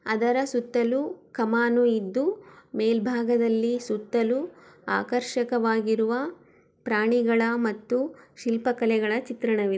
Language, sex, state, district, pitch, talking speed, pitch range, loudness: Kannada, female, Karnataka, Chamarajanagar, 235 Hz, 65 wpm, 225-250 Hz, -25 LUFS